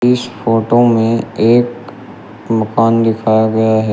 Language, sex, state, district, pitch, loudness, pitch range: Hindi, male, Uttar Pradesh, Shamli, 115 Hz, -13 LUFS, 110-120 Hz